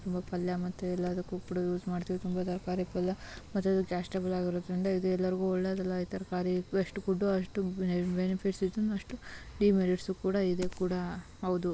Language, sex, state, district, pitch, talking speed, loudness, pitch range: Kannada, female, Karnataka, Mysore, 185 Hz, 165 wpm, -33 LUFS, 180-190 Hz